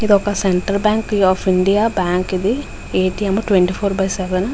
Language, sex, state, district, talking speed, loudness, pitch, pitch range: Telugu, female, Andhra Pradesh, Visakhapatnam, 185 wpm, -17 LUFS, 195 Hz, 185-205 Hz